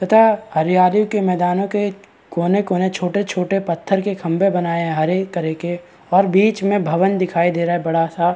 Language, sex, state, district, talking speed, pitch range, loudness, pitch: Hindi, male, Uttar Pradesh, Varanasi, 170 wpm, 170-195 Hz, -18 LUFS, 180 Hz